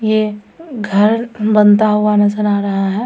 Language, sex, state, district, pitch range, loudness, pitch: Hindi, female, Bihar, Samastipur, 205-215 Hz, -13 LUFS, 210 Hz